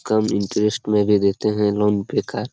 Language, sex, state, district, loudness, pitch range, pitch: Hindi, male, Bihar, Darbhanga, -20 LUFS, 100-105 Hz, 105 Hz